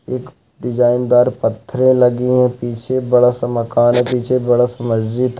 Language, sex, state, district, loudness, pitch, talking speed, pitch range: Hindi, male, Chhattisgarh, Raigarh, -15 LUFS, 125 Hz, 155 wpm, 120-125 Hz